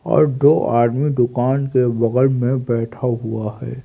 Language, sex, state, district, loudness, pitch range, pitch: Hindi, male, Haryana, Rohtak, -18 LUFS, 120-130 Hz, 125 Hz